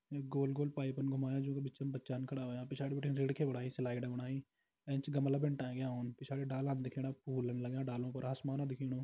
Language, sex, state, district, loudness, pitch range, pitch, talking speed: Garhwali, male, Uttarakhand, Tehri Garhwal, -40 LUFS, 130-140 Hz, 135 Hz, 205 wpm